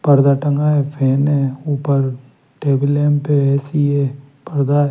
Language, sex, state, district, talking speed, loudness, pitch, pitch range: Hindi, male, Bihar, Patna, 145 wpm, -17 LUFS, 140 Hz, 140-145 Hz